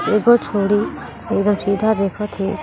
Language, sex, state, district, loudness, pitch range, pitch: Sadri, female, Chhattisgarh, Jashpur, -18 LUFS, 200-210 Hz, 205 Hz